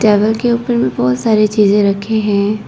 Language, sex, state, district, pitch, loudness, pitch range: Hindi, female, Arunachal Pradesh, Papum Pare, 210 Hz, -13 LUFS, 200-220 Hz